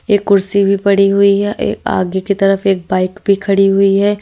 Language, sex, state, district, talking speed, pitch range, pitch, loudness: Hindi, female, Uttar Pradesh, Lalitpur, 225 wpm, 195-200 Hz, 195 Hz, -13 LUFS